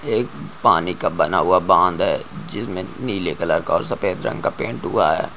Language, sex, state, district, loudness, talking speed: Hindi, male, Uttarakhand, Uttarkashi, -20 LUFS, 210 wpm